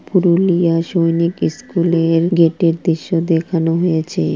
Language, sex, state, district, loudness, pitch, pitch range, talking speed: Bengali, male, West Bengal, Purulia, -16 LUFS, 170 Hz, 165-175 Hz, 95 wpm